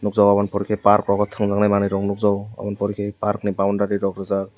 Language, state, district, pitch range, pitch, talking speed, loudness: Kokborok, Tripura, West Tripura, 100-105 Hz, 100 Hz, 260 wpm, -20 LUFS